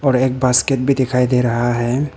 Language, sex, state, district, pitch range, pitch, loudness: Hindi, male, Arunachal Pradesh, Papum Pare, 125-135 Hz, 125 Hz, -16 LUFS